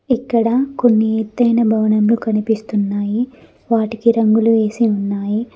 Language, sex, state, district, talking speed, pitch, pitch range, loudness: Telugu, female, Telangana, Mahabubabad, 95 wpm, 225 Hz, 215-235 Hz, -16 LUFS